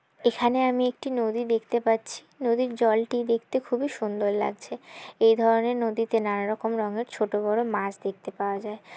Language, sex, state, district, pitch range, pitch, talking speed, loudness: Bengali, female, West Bengal, Jalpaiguri, 210-240 Hz, 225 Hz, 175 wpm, -26 LUFS